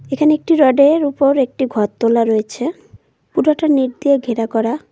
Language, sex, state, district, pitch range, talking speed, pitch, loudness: Bengali, female, West Bengal, Cooch Behar, 230-300 Hz, 160 wpm, 275 Hz, -15 LUFS